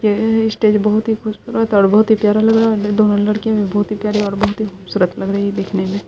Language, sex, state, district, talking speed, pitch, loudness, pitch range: Hindi, female, Bihar, Saharsa, 265 wpm, 210 Hz, -15 LUFS, 200-215 Hz